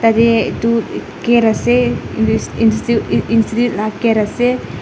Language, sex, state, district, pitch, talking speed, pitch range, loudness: Nagamese, female, Nagaland, Dimapur, 225 Hz, 100 wpm, 180-230 Hz, -15 LUFS